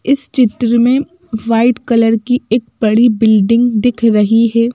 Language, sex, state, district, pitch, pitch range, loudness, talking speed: Hindi, female, Madhya Pradesh, Bhopal, 235 Hz, 225-245 Hz, -12 LUFS, 150 wpm